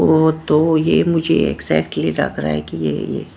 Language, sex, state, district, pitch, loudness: Hindi, female, Punjab, Kapurthala, 155 Hz, -17 LUFS